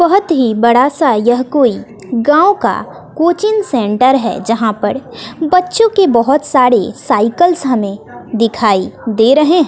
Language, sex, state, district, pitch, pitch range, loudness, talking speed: Hindi, female, Bihar, West Champaran, 255 Hz, 225-320 Hz, -12 LUFS, 145 wpm